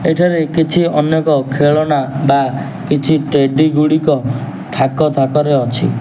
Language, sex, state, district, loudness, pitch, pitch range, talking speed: Odia, male, Odisha, Nuapada, -14 LUFS, 150 Hz, 140-155 Hz, 110 wpm